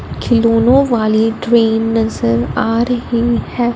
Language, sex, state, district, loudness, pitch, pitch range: Hindi, female, Punjab, Fazilka, -14 LUFS, 230 Hz, 225-240 Hz